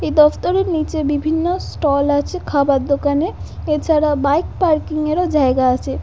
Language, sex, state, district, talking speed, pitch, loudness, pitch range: Bengali, female, West Bengal, Kolkata, 160 wpm, 300 Hz, -17 LUFS, 285-320 Hz